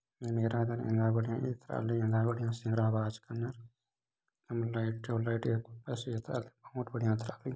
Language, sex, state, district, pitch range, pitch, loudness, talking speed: Sadri, male, Chhattisgarh, Jashpur, 115-120 Hz, 115 Hz, -35 LUFS, 125 wpm